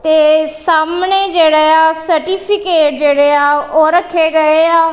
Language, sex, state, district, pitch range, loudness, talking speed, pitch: Punjabi, female, Punjab, Kapurthala, 310-335 Hz, -10 LUFS, 120 wpm, 320 Hz